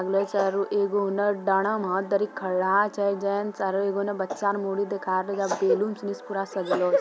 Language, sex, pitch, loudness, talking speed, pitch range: Magahi, female, 200 Hz, -26 LUFS, 195 wpm, 195-205 Hz